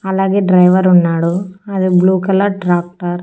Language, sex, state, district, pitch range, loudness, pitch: Telugu, female, Andhra Pradesh, Annamaya, 175-195 Hz, -13 LUFS, 185 Hz